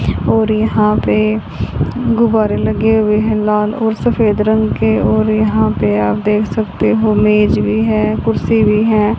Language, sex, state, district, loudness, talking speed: Hindi, female, Haryana, Rohtak, -14 LUFS, 165 wpm